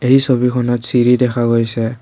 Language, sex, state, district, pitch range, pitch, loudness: Assamese, male, Assam, Kamrup Metropolitan, 120-125 Hz, 120 Hz, -14 LUFS